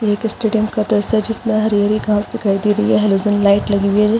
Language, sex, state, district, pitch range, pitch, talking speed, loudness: Hindi, female, Chhattisgarh, Bastar, 205-215 Hz, 210 Hz, 270 wpm, -16 LUFS